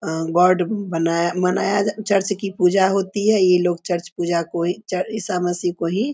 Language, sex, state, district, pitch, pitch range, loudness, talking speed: Hindi, female, Bihar, Begusarai, 180 Hz, 175-200 Hz, -20 LUFS, 195 wpm